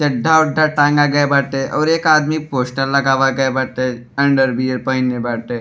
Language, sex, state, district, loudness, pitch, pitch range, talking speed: Bhojpuri, male, Uttar Pradesh, Deoria, -16 LUFS, 135 Hz, 130-145 Hz, 160 wpm